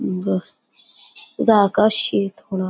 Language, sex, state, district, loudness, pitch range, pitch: Marathi, female, Maharashtra, Dhule, -18 LUFS, 190-210 Hz, 200 Hz